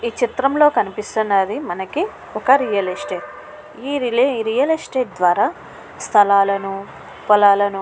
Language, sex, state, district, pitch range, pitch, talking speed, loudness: Telugu, female, Andhra Pradesh, Krishna, 195-255 Hz, 210 Hz, 100 wpm, -18 LUFS